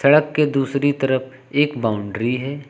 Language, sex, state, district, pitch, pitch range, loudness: Hindi, male, Uttar Pradesh, Lucknow, 135 Hz, 130-145 Hz, -20 LUFS